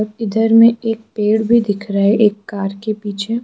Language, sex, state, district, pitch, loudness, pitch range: Hindi, female, Arunachal Pradesh, Lower Dibang Valley, 215 Hz, -15 LUFS, 205-225 Hz